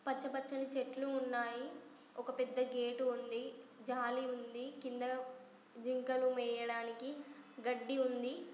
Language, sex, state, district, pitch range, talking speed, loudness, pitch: Telugu, female, Andhra Pradesh, Guntur, 245-260 Hz, 110 wpm, -41 LUFS, 255 Hz